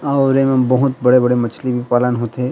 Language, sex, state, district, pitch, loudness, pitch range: Chhattisgarhi, male, Chhattisgarh, Rajnandgaon, 125 Hz, -15 LUFS, 120-135 Hz